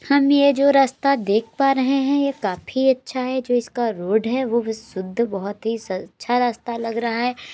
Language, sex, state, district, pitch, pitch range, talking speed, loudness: Hindi, female, Uttar Pradesh, Jalaun, 245 Hz, 225-270 Hz, 215 wpm, -21 LUFS